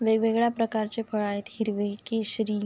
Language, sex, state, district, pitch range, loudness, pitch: Marathi, female, Maharashtra, Sindhudurg, 210-225 Hz, -27 LUFS, 220 Hz